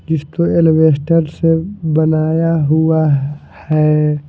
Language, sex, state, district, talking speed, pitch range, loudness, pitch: Hindi, male, Punjab, Fazilka, 85 wpm, 150-165 Hz, -14 LUFS, 160 Hz